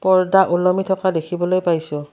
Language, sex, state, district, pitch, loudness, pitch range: Assamese, female, Assam, Kamrup Metropolitan, 180 Hz, -18 LUFS, 170-185 Hz